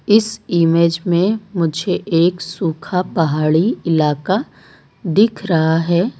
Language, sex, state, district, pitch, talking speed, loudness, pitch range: Hindi, female, Gujarat, Valsad, 170 Hz, 105 wpm, -17 LUFS, 165-200 Hz